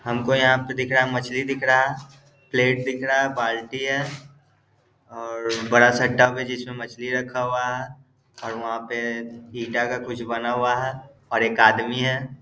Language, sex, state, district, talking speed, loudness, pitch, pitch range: Hindi, male, Bihar, Gaya, 170 wpm, -22 LUFS, 125 Hz, 120-130 Hz